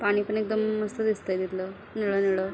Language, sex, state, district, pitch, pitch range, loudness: Marathi, female, Maharashtra, Aurangabad, 205 Hz, 190-215 Hz, -28 LUFS